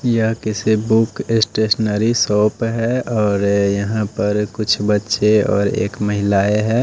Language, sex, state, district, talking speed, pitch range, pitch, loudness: Hindi, male, Odisha, Nuapada, 140 wpm, 105-110 Hz, 110 Hz, -17 LUFS